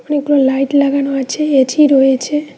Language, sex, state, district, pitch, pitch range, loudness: Bengali, female, West Bengal, Cooch Behar, 280 Hz, 270-295 Hz, -13 LUFS